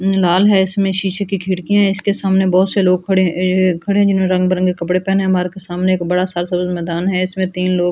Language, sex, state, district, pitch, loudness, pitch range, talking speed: Hindi, female, Delhi, New Delhi, 185 Hz, -16 LUFS, 180-195 Hz, 240 wpm